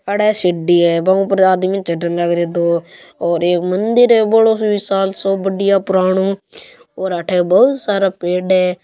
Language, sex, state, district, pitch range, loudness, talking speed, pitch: Hindi, female, Rajasthan, Churu, 175-200 Hz, -15 LUFS, 175 wpm, 190 Hz